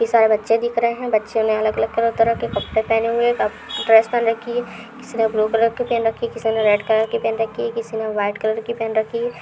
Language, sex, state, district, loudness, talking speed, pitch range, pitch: Hindi, female, Uttar Pradesh, Hamirpur, -19 LUFS, 265 wpm, 220-230 Hz, 225 Hz